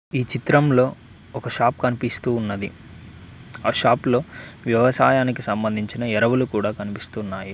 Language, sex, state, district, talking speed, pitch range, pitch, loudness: Telugu, male, Telangana, Mahabubabad, 110 wpm, 105-125 Hz, 115 Hz, -21 LUFS